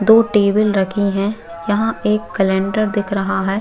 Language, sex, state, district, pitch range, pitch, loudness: Hindi, female, Chhattisgarh, Bastar, 195-215 Hz, 205 Hz, -17 LUFS